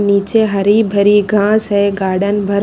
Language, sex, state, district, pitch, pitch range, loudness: Hindi, female, Haryana, Rohtak, 205 Hz, 200-210 Hz, -13 LUFS